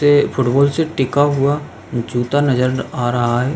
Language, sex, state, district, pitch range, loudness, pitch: Hindi, male, Uttar Pradesh, Jalaun, 125-145 Hz, -17 LUFS, 135 Hz